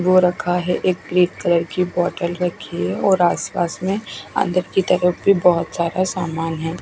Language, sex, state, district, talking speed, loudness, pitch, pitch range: Hindi, female, Punjab, Fazilka, 195 wpm, -19 LUFS, 180 Hz, 170-185 Hz